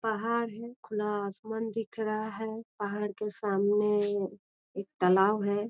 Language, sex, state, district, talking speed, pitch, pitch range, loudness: Hindi, female, Bihar, Jamui, 135 wpm, 210 Hz, 200-220 Hz, -31 LUFS